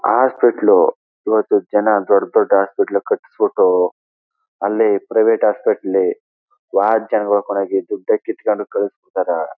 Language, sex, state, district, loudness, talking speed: Kannada, male, Karnataka, Chamarajanagar, -17 LUFS, 95 wpm